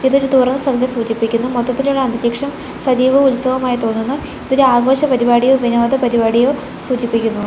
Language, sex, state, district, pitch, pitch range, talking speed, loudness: Malayalam, female, Kerala, Kollam, 255 Hz, 240-270 Hz, 120 wpm, -15 LUFS